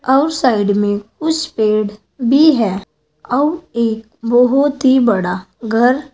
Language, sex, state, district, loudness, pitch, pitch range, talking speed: Hindi, female, Uttar Pradesh, Saharanpur, -15 LUFS, 235 Hz, 210-275 Hz, 125 wpm